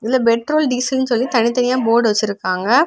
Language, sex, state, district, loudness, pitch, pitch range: Tamil, female, Tamil Nadu, Kanyakumari, -17 LUFS, 235 Hz, 230-255 Hz